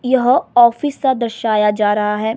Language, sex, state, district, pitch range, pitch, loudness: Hindi, female, Himachal Pradesh, Shimla, 210-255 Hz, 235 Hz, -15 LUFS